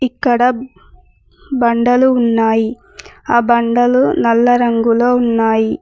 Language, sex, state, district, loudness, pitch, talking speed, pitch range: Telugu, female, Telangana, Mahabubabad, -13 LUFS, 240 Hz, 80 wpm, 230-250 Hz